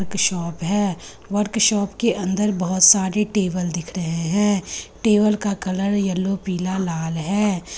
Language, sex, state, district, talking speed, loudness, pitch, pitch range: Hindi, female, Bihar, Lakhisarai, 155 wpm, -20 LUFS, 195 Hz, 180-205 Hz